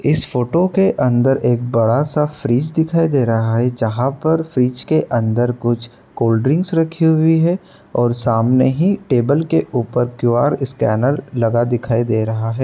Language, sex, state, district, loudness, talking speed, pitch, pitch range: Hindi, male, Uttar Pradesh, Etah, -17 LUFS, 160 wpm, 125 Hz, 120-155 Hz